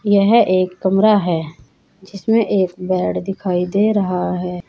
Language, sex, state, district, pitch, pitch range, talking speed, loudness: Hindi, female, Uttar Pradesh, Saharanpur, 190 Hz, 180-200 Hz, 140 wpm, -17 LUFS